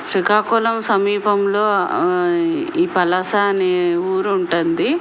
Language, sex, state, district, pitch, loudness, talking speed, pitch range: Telugu, female, Andhra Pradesh, Srikakulam, 205 Hz, -17 LUFS, 85 wpm, 190-250 Hz